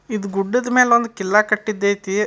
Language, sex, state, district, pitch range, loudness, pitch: Kannada, male, Karnataka, Dharwad, 200-235 Hz, -18 LUFS, 210 Hz